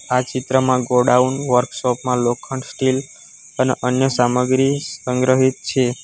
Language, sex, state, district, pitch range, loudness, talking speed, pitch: Gujarati, male, Gujarat, Valsad, 125-130 Hz, -18 LUFS, 120 wpm, 130 Hz